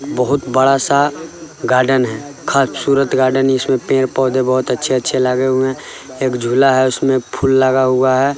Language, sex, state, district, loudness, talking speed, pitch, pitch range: Hindi, male, Bihar, Sitamarhi, -15 LUFS, 165 wpm, 130 Hz, 130-135 Hz